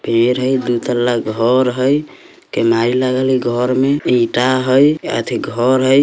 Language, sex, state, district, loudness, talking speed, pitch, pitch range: Bajjika, male, Bihar, Vaishali, -15 LUFS, 210 wpm, 125 Hz, 120-130 Hz